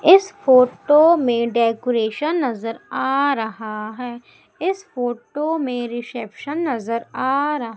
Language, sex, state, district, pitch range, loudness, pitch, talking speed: Hindi, female, Madhya Pradesh, Umaria, 235-300 Hz, -20 LUFS, 250 Hz, 115 wpm